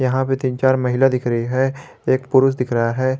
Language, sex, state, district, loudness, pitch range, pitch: Hindi, male, Jharkhand, Garhwa, -18 LUFS, 125-130 Hz, 130 Hz